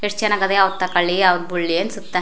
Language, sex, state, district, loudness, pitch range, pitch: Kannada, female, Karnataka, Chamarajanagar, -18 LUFS, 180-200 Hz, 190 Hz